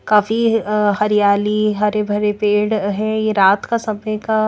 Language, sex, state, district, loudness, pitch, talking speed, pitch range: Hindi, female, Bihar, Katihar, -17 LUFS, 210 Hz, 145 wpm, 210-215 Hz